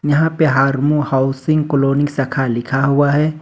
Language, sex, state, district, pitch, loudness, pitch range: Hindi, male, Jharkhand, Ranchi, 140 Hz, -16 LUFS, 135-150 Hz